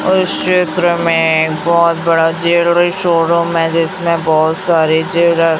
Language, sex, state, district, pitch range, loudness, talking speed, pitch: Hindi, female, Chhattisgarh, Raipur, 165-170 Hz, -13 LUFS, 150 wpm, 170 Hz